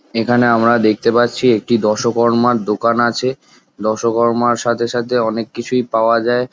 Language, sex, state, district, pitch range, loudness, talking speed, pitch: Bengali, male, West Bengal, Jalpaiguri, 115-120 Hz, -15 LUFS, 140 wpm, 120 Hz